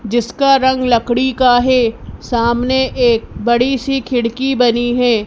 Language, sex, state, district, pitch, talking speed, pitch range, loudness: Hindi, male, Madhya Pradesh, Bhopal, 245 Hz, 135 wpm, 235-260 Hz, -14 LUFS